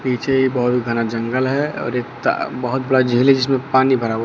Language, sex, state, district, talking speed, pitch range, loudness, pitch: Hindi, male, Uttar Pradesh, Lucknow, 240 wpm, 120-130 Hz, -18 LUFS, 130 Hz